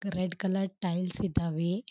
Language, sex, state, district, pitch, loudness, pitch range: Kannada, female, Karnataka, Belgaum, 190 Hz, -31 LUFS, 180-195 Hz